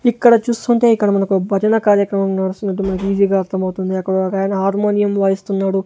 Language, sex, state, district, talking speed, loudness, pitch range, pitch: Telugu, male, Andhra Pradesh, Sri Satya Sai, 135 wpm, -16 LUFS, 190-205 Hz, 195 Hz